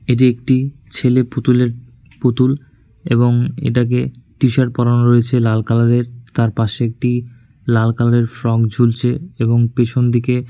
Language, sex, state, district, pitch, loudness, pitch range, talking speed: Bengali, male, West Bengal, Malda, 120 Hz, -16 LUFS, 120-125 Hz, 130 wpm